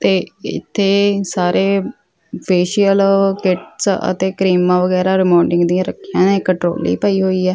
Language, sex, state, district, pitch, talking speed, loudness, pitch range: Punjabi, female, Punjab, Fazilka, 190 Hz, 135 wpm, -15 LUFS, 180-195 Hz